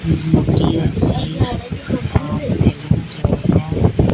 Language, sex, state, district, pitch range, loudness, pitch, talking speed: Odia, female, Odisha, Sambalpur, 95-150 Hz, -17 LUFS, 115 Hz, 75 wpm